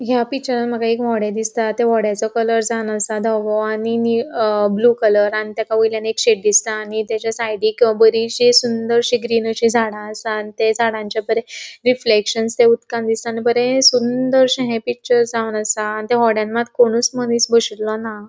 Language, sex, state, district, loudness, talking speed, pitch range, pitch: Konkani, female, Goa, North and South Goa, -17 LUFS, 165 wpm, 220-235 Hz, 230 Hz